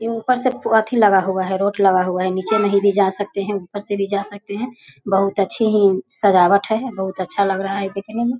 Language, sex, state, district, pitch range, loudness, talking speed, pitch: Hindi, female, Bihar, Sitamarhi, 195-220 Hz, -18 LUFS, 250 wpm, 200 Hz